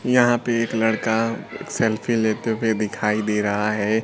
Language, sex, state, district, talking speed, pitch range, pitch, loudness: Hindi, male, Bihar, Kaimur, 165 wpm, 105-115 Hz, 110 Hz, -21 LUFS